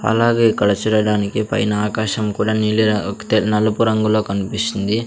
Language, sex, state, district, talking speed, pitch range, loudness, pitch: Telugu, male, Andhra Pradesh, Sri Satya Sai, 140 wpm, 105-110 Hz, -17 LUFS, 110 Hz